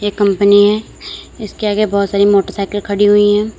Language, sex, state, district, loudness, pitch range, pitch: Hindi, female, Uttar Pradesh, Lalitpur, -13 LUFS, 200-210 Hz, 205 Hz